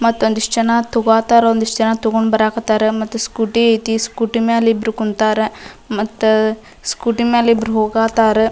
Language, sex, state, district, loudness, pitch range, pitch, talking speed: Kannada, female, Karnataka, Dharwad, -15 LUFS, 220-230 Hz, 225 Hz, 150 wpm